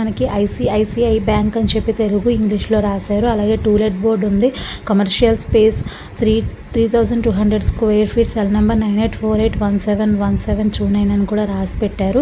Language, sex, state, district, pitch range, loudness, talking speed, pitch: Telugu, female, Andhra Pradesh, Visakhapatnam, 205-225 Hz, -16 LUFS, 170 wpm, 215 Hz